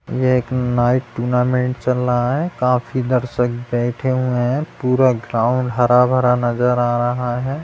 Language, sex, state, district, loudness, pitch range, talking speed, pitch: Hindi, male, Bihar, Purnia, -18 LUFS, 120-130 Hz, 150 wpm, 125 Hz